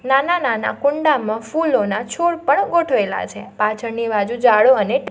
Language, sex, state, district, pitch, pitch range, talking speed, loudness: Gujarati, female, Gujarat, Valsad, 250 Hz, 215-305 Hz, 140 wpm, -18 LUFS